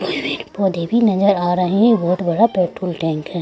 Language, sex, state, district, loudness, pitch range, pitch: Hindi, female, Bihar, Gaya, -17 LUFS, 170-200 Hz, 180 Hz